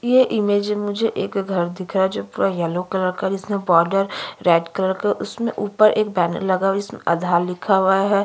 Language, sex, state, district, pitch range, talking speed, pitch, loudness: Hindi, female, Chhattisgarh, Kabirdham, 180-205 Hz, 220 wpm, 195 Hz, -20 LUFS